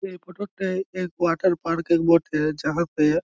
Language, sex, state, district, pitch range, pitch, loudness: Bengali, male, West Bengal, Malda, 165-185 Hz, 170 Hz, -23 LUFS